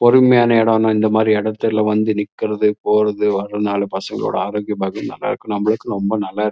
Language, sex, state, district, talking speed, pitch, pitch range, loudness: Tamil, male, Karnataka, Chamarajanagar, 155 wpm, 105 Hz, 105-110 Hz, -17 LUFS